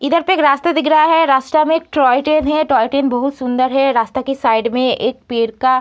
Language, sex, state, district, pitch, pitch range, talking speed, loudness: Hindi, female, Uttar Pradesh, Deoria, 270 Hz, 255-310 Hz, 270 wpm, -15 LUFS